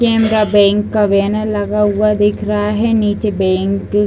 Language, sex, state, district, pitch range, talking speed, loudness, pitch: Hindi, female, Uttar Pradesh, Deoria, 205-215 Hz, 175 wpm, -14 LUFS, 210 Hz